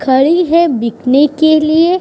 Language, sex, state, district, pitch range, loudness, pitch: Hindi, female, Uttar Pradesh, Budaun, 265-330 Hz, -11 LUFS, 310 Hz